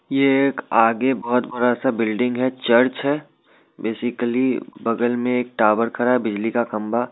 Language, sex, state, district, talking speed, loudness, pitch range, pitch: Hindi, male, Bihar, Muzaffarpur, 160 wpm, -20 LUFS, 115-130 Hz, 120 Hz